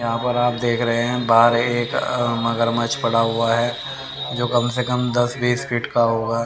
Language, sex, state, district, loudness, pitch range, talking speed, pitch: Hindi, male, Haryana, Rohtak, -20 LUFS, 115-120 Hz, 205 wpm, 120 Hz